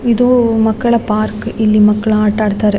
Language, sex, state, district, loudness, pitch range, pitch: Kannada, female, Karnataka, Dakshina Kannada, -13 LUFS, 210-230 Hz, 215 Hz